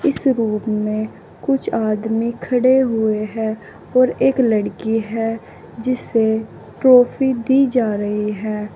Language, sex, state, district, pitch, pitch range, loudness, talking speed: Hindi, female, Uttar Pradesh, Saharanpur, 225 Hz, 215-255 Hz, -18 LUFS, 125 wpm